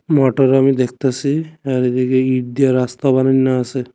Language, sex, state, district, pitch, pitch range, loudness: Bengali, male, Tripura, West Tripura, 130 Hz, 125-135 Hz, -16 LUFS